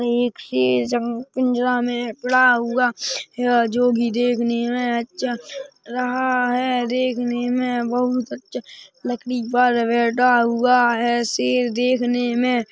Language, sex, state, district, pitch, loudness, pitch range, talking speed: Hindi, male, Chhattisgarh, Rajnandgaon, 245 Hz, -20 LUFS, 235-250 Hz, 130 wpm